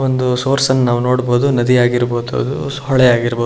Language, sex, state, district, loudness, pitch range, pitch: Kannada, male, Karnataka, Shimoga, -15 LUFS, 120-130 Hz, 125 Hz